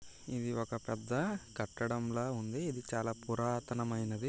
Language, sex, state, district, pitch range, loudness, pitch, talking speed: Telugu, male, Andhra Pradesh, Guntur, 115-125 Hz, -38 LUFS, 115 Hz, 140 wpm